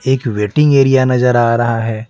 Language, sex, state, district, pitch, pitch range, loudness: Hindi, male, Bihar, Patna, 120 Hz, 115-130 Hz, -13 LUFS